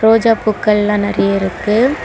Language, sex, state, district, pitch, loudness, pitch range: Tamil, female, Tamil Nadu, Kanyakumari, 210 Hz, -14 LUFS, 200-225 Hz